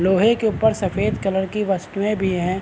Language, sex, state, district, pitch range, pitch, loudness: Hindi, male, Bihar, Vaishali, 190-210 Hz, 195 Hz, -20 LUFS